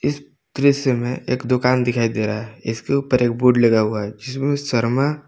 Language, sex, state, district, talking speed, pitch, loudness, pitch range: Hindi, male, Jharkhand, Palamu, 195 wpm, 125 Hz, -19 LUFS, 110-135 Hz